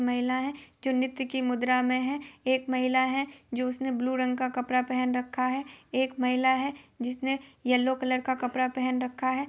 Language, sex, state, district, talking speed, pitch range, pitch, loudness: Hindi, female, Bihar, Gopalganj, 195 wpm, 255-260 Hz, 255 Hz, -29 LUFS